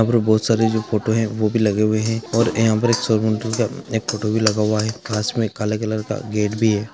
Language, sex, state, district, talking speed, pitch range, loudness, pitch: Hindi, male, Andhra Pradesh, Anantapur, 235 wpm, 110-115 Hz, -20 LUFS, 110 Hz